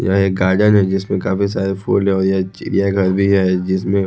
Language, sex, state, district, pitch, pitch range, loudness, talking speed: Hindi, male, Odisha, Khordha, 95 Hz, 95-100 Hz, -16 LUFS, 235 wpm